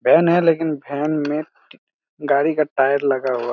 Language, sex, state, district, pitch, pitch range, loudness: Hindi, male, Chhattisgarh, Raigarh, 145 Hz, 140-155 Hz, -19 LUFS